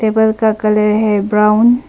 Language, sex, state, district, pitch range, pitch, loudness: Hindi, female, Arunachal Pradesh, Papum Pare, 210-220 Hz, 215 Hz, -13 LUFS